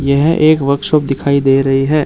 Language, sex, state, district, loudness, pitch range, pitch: Hindi, male, Arunachal Pradesh, Lower Dibang Valley, -12 LUFS, 135-150 Hz, 140 Hz